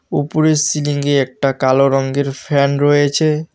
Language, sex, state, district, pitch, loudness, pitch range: Bengali, male, West Bengal, Alipurduar, 145 Hz, -15 LUFS, 135-150 Hz